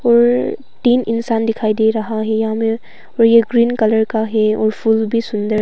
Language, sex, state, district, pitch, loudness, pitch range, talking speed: Hindi, female, Arunachal Pradesh, Papum Pare, 225 Hz, -16 LUFS, 220-230 Hz, 205 wpm